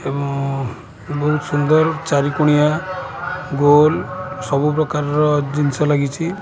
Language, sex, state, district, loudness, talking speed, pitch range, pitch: Odia, male, Odisha, Khordha, -18 LUFS, 95 wpm, 140-160 Hz, 150 Hz